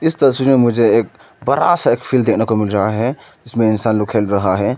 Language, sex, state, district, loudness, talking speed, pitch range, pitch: Hindi, male, Arunachal Pradesh, Lower Dibang Valley, -15 LUFS, 265 wpm, 105-130 Hz, 115 Hz